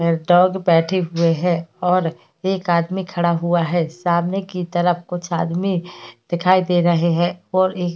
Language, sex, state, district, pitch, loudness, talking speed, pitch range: Hindi, female, Uttar Pradesh, Hamirpur, 175 Hz, -19 LUFS, 175 wpm, 170-180 Hz